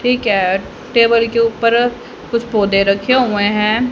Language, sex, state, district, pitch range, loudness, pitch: Hindi, female, Haryana, Jhajjar, 205-240 Hz, -15 LUFS, 230 Hz